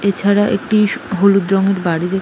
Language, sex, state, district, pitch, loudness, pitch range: Bengali, female, West Bengal, North 24 Parganas, 195 Hz, -15 LUFS, 195-205 Hz